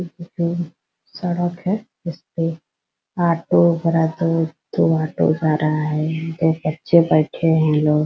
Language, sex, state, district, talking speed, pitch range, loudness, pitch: Hindi, female, Bihar, Purnia, 135 wpm, 155-170 Hz, -19 LUFS, 165 Hz